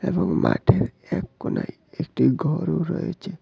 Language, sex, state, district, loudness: Bengali, male, Tripura, West Tripura, -24 LUFS